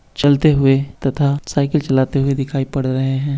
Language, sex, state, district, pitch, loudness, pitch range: Hindi, male, Uttar Pradesh, Hamirpur, 140 Hz, -17 LUFS, 135-140 Hz